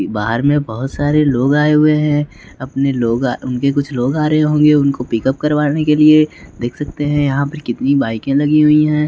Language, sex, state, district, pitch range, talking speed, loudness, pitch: Hindi, male, Bihar, West Champaran, 130-150 Hz, 205 wpm, -15 LUFS, 145 Hz